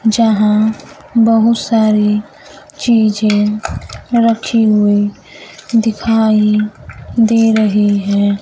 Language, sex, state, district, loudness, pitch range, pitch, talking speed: Hindi, female, Bihar, Kaimur, -13 LUFS, 210-225 Hz, 220 Hz, 70 wpm